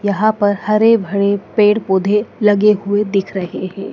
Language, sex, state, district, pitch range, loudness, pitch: Hindi, female, Madhya Pradesh, Dhar, 200-210 Hz, -15 LUFS, 205 Hz